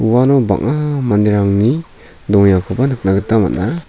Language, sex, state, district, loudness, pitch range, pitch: Garo, male, Meghalaya, South Garo Hills, -14 LUFS, 100-135 Hz, 110 Hz